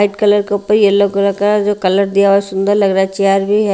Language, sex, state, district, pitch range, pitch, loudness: Hindi, female, Haryana, Rohtak, 195-205 Hz, 200 Hz, -13 LUFS